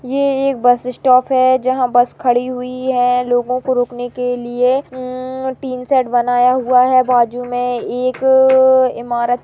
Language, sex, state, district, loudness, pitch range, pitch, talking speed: Hindi, female, Uttarakhand, Tehri Garhwal, -15 LUFS, 245-260 Hz, 250 Hz, 165 wpm